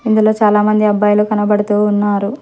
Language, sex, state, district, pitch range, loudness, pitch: Telugu, male, Telangana, Hyderabad, 205-215 Hz, -13 LUFS, 210 Hz